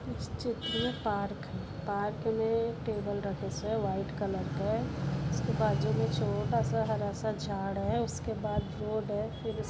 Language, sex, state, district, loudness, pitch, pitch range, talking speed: Hindi, female, Maharashtra, Nagpur, -33 LUFS, 210 Hz, 200-225 Hz, 155 wpm